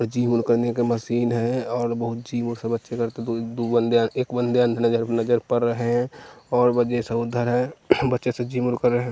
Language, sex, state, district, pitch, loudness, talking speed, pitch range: Hindi, male, Bihar, West Champaran, 120 Hz, -23 LUFS, 150 wpm, 115-120 Hz